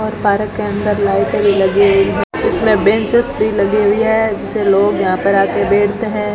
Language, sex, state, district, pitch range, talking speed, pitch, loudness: Hindi, female, Rajasthan, Bikaner, 200-215 Hz, 210 wpm, 205 Hz, -14 LUFS